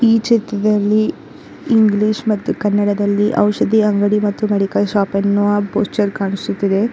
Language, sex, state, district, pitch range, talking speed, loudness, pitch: Kannada, female, Karnataka, Koppal, 200-215 Hz, 115 wpm, -16 LUFS, 205 Hz